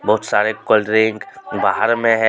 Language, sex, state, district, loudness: Hindi, male, Jharkhand, Deoghar, -17 LUFS